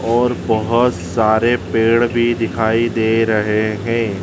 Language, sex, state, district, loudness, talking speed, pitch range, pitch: Hindi, male, Madhya Pradesh, Dhar, -16 LUFS, 130 wpm, 110-120 Hz, 115 Hz